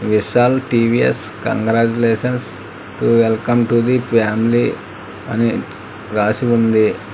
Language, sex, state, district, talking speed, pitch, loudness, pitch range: Telugu, male, Telangana, Hyderabad, 85 wpm, 115 Hz, -16 LUFS, 110-120 Hz